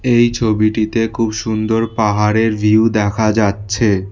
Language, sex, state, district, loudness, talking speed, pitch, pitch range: Bengali, male, West Bengal, Alipurduar, -15 LUFS, 115 wpm, 110 Hz, 105-115 Hz